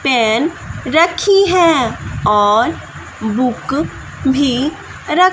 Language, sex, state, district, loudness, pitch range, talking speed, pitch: Hindi, female, Bihar, West Champaran, -15 LUFS, 220-340 Hz, 80 wpm, 275 Hz